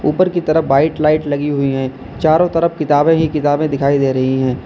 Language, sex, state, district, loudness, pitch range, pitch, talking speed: Hindi, male, Uttar Pradesh, Lalitpur, -15 LUFS, 135-160 Hz, 145 Hz, 220 wpm